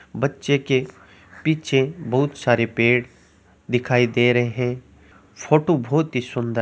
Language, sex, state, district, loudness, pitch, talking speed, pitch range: Hindi, male, Rajasthan, Churu, -21 LUFS, 125 Hz, 125 wpm, 115-135 Hz